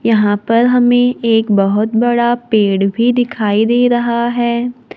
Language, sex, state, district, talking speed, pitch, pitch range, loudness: Hindi, female, Maharashtra, Gondia, 145 wpm, 235 Hz, 215-240 Hz, -13 LUFS